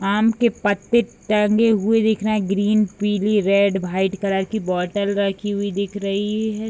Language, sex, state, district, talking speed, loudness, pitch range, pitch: Hindi, female, Bihar, Bhagalpur, 180 wpm, -20 LUFS, 200-215 Hz, 205 Hz